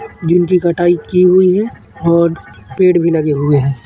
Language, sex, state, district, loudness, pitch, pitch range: Hindi, male, Uttar Pradesh, Etah, -12 LUFS, 170 Hz, 150-180 Hz